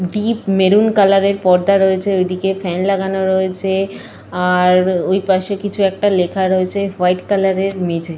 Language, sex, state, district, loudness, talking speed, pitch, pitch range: Bengali, female, Jharkhand, Jamtara, -15 LUFS, 140 wpm, 190 Hz, 185-195 Hz